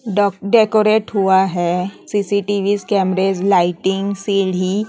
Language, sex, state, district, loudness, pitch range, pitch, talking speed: Hindi, female, Chhattisgarh, Raipur, -17 LUFS, 190-205 Hz, 200 Hz, 100 wpm